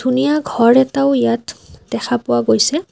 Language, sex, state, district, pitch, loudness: Assamese, female, Assam, Kamrup Metropolitan, 235 Hz, -15 LUFS